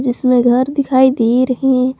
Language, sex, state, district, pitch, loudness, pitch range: Hindi, female, Jharkhand, Palamu, 255 Hz, -13 LUFS, 250-260 Hz